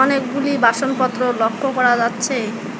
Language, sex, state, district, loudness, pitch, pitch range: Bengali, male, West Bengal, Alipurduar, -18 LUFS, 255 Hz, 235-270 Hz